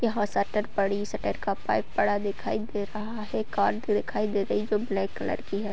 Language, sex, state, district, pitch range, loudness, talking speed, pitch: Hindi, female, Uttar Pradesh, Deoria, 200-215 Hz, -28 LUFS, 230 wpm, 210 Hz